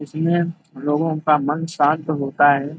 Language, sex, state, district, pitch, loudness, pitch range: Hindi, male, Uttar Pradesh, Hamirpur, 150 Hz, -20 LUFS, 145-160 Hz